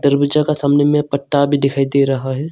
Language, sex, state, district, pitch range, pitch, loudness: Hindi, male, Arunachal Pradesh, Longding, 140-145 Hz, 140 Hz, -15 LUFS